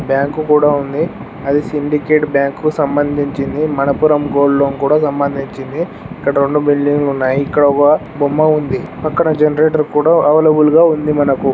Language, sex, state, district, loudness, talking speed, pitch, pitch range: Telugu, male, Telangana, Karimnagar, -14 LUFS, 155 wpm, 145 Hz, 140-155 Hz